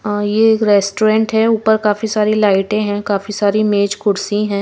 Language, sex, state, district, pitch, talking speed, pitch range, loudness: Hindi, female, Himachal Pradesh, Shimla, 210 Hz, 195 wpm, 205-215 Hz, -15 LUFS